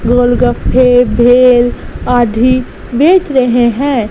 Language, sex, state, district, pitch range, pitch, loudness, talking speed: Hindi, female, Gujarat, Gandhinagar, 240-255 Hz, 245 Hz, -10 LUFS, 85 wpm